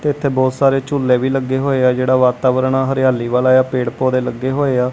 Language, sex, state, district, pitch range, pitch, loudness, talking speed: Punjabi, male, Punjab, Kapurthala, 125-135 Hz, 130 Hz, -15 LUFS, 205 wpm